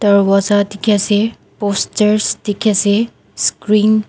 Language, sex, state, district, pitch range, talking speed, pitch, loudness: Nagamese, female, Nagaland, Dimapur, 205-215 Hz, 115 wpm, 205 Hz, -15 LUFS